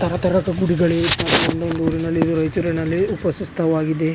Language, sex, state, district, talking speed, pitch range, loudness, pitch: Kannada, male, Karnataka, Raichur, 100 wpm, 160-180 Hz, -19 LUFS, 165 Hz